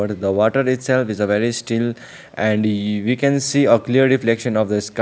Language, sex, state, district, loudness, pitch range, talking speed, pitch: English, male, Sikkim, Gangtok, -18 LUFS, 105-130 Hz, 240 wpm, 115 Hz